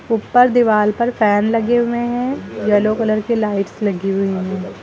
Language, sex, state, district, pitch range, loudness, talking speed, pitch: Hindi, female, Uttar Pradesh, Lucknow, 205-235 Hz, -17 LUFS, 175 wpm, 215 Hz